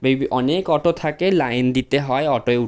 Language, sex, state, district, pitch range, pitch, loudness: Bengali, male, West Bengal, Jhargram, 125-155 Hz, 135 Hz, -19 LUFS